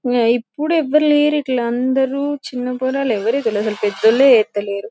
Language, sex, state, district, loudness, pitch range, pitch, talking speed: Telugu, female, Telangana, Karimnagar, -17 LUFS, 220-280 Hz, 250 Hz, 100 wpm